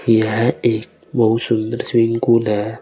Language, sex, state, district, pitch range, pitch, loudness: Hindi, male, Uttar Pradesh, Saharanpur, 110-115 Hz, 115 Hz, -17 LUFS